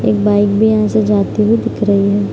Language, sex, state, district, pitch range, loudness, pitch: Hindi, female, Bihar, Araria, 205-215 Hz, -13 LUFS, 210 Hz